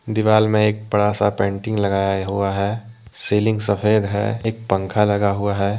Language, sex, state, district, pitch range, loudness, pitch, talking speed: Hindi, male, Jharkhand, Deoghar, 100-110 Hz, -19 LUFS, 105 Hz, 175 wpm